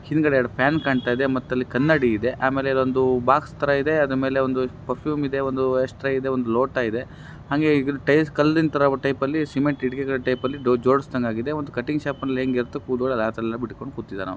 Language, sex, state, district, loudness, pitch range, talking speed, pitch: Kannada, male, Karnataka, Raichur, -22 LUFS, 125-140 Hz, 190 wpm, 135 Hz